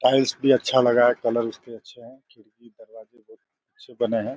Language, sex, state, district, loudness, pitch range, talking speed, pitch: Hindi, male, Uttar Pradesh, Deoria, -21 LUFS, 115-130 Hz, 150 wpm, 120 Hz